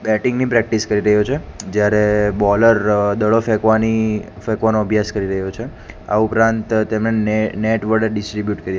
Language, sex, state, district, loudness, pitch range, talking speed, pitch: Gujarati, male, Gujarat, Gandhinagar, -17 LUFS, 105-110 Hz, 155 wpm, 110 Hz